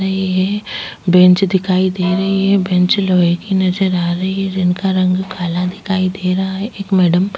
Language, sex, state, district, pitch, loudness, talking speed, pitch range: Hindi, female, Chhattisgarh, Kabirdham, 185 Hz, -15 LUFS, 195 wpm, 180-195 Hz